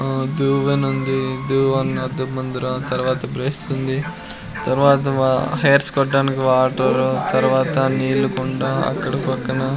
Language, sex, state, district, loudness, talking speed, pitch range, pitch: Telugu, male, Andhra Pradesh, Sri Satya Sai, -19 LUFS, 105 wpm, 130-135 Hz, 135 Hz